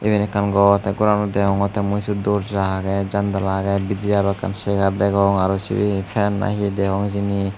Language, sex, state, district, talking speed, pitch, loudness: Chakma, male, Tripura, Unakoti, 180 wpm, 100 Hz, -20 LUFS